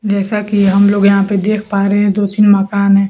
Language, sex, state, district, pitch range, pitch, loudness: Hindi, female, Bihar, Kaimur, 200-205 Hz, 200 Hz, -12 LUFS